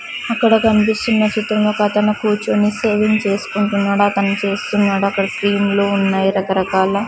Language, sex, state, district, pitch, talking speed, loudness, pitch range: Telugu, female, Andhra Pradesh, Sri Satya Sai, 205 Hz, 135 wpm, -16 LUFS, 200-215 Hz